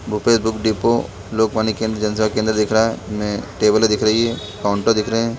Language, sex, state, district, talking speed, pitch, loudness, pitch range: Hindi, male, Chhattisgarh, Balrampur, 210 wpm, 110 Hz, -18 LUFS, 105-110 Hz